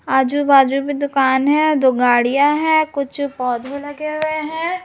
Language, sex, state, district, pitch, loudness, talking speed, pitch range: Hindi, female, Chhattisgarh, Raipur, 285 Hz, -17 LUFS, 160 wpm, 265-305 Hz